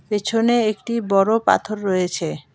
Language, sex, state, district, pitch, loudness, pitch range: Bengali, female, West Bengal, Alipurduar, 210 Hz, -19 LUFS, 185-225 Hz